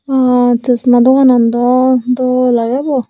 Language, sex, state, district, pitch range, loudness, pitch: Chakma, female, Tripura, Unakoti, 245-260 Hz, -11 LUFS, 250 Hz